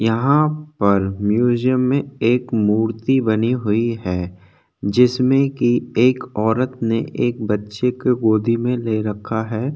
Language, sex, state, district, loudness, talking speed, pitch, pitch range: Hindi, male, Maharashtra, Chandrapur, -19 LUFS, 130 wpm, 115 Hz, 110-125 Hz